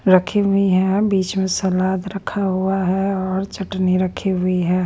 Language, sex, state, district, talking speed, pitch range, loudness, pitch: Hindi, female, Bihar, Patna, 170 wpm, 185-195 Hz, -19 LUFS, 190 Hz